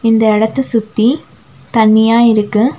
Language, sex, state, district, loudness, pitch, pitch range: Tamil, female, Tamil Nadu, Nilgiris, -12 LUFS, 225 Hz, 220-235 Hz